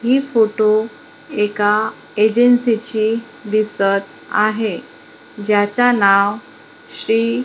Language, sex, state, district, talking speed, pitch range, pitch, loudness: Marathi, female, Maharashtra, Gondia, 70 wpm, 205-230 Hz, 215 Hz, -16 LUFS